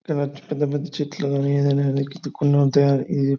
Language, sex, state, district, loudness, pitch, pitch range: Telugu, male, Andhra Pradesh, Anantapur, -21 LUFS, 140 Hz, 140-145 Hz